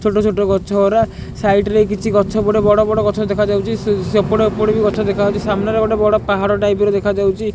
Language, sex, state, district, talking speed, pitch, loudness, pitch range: Odia, male, Odisha, Khordha, 215 wpm, 210 Hz, -15 LUFS, 200-215 Hz